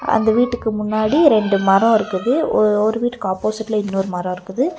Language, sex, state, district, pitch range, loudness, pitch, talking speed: Tamil, female, Tamil Nadu, Nilgiris, 195-240 Hz, -17 LUFS, 215 Hz, 160 wpm